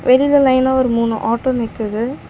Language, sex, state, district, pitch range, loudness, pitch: Tamil, female, Tamil Nadu, Chennai, 230-260 Hz, -16 LUFS, 255 Hz